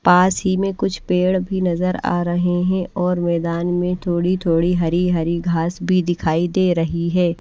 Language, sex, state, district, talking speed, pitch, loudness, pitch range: Hindi, female, Odisha, Malkangiri, 185 wpm, 175 Hz, -19 LUFS, 170-180 Hz